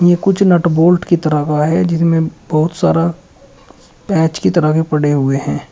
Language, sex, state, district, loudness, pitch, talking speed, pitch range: Hindi, male, Uttar Pradesh, Shamli, -14 LUFS, 165 Hz, 180 wpm, 155-175 Hz